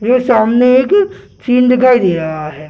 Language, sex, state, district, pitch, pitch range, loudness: Hindi, male, Bihar, Gaya, 245 Hz, 180-255 Hz, -11 LUFS